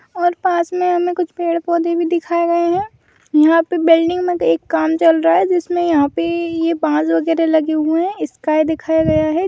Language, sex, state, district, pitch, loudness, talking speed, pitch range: Hindi, female, Bihar, Madhepura, 335 Hz, -16 LUFS, 205 wpm, 320-350 Hz